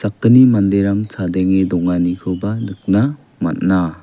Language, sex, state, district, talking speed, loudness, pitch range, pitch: Garo, male, Meghalaya, West Garo Hills, 75 wpm, -16 LUFS, 90-105 Hz, 100 Hz